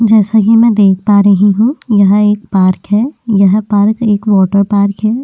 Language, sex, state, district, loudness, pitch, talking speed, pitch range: Hindi, female, Uttarakhand, Tehri Garhwal, -10 LUFS, 205 Hz, 195 wpm, 200-220 Hz